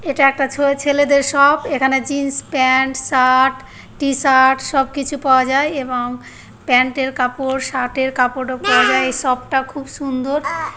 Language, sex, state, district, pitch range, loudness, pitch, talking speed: Bengali, female, West Bengal, North 24 Parganas, 260-280 Hz, -16 LUFS, 265 Hz, 145 wpm